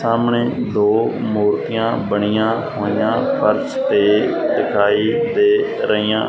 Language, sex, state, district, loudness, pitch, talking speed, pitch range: Punjabi, male, Punjab, Fazilka, -17 LUFS, 115 Hz, 95 wpm, 105-160 Hz